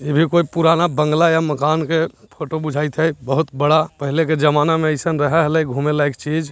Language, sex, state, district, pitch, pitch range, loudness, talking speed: Hindi, male, Bihar, Jahanabad, 155 Hz, 150-160 Hz, -17 LUFS, 210 wpm